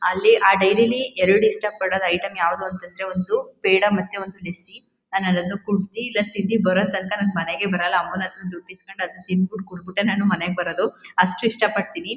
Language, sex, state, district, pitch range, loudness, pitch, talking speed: Kannada, female, Karnataka, Mysore, 185-210 Hz, -21 LUFS, 195 Hz, 180 wpm